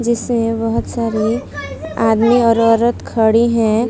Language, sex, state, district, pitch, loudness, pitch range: Hindi, female, Uttar Pradesh, Muzaffarnagar, 230 Hz, -15 LUFS, 225-235 Hz